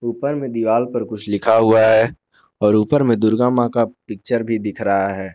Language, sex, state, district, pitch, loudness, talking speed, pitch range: Hindi, male, Jharkhand, Garhwa, 115 Hz, -17 LUFS, 215 wpm, 105-120 Hz